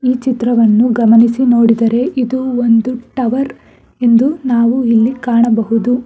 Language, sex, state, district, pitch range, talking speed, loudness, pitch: Kannada, female, Karnataka, Bangalore, 230-255 Hz, 110 wpm, -12 LUFS, 240 Hz